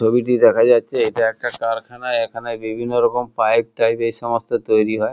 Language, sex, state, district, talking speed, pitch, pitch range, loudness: Bengali, male, West Bengal, Kolkata, 175 wpm, 120 Hz, 115-125 Hz, -18 LUFS